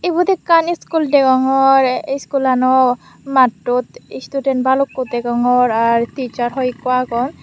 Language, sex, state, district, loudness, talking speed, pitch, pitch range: Chakma, female, Tripura, Unakoti, -16 LUFS, 115 wpm, 260 Hz, 250-275 Hz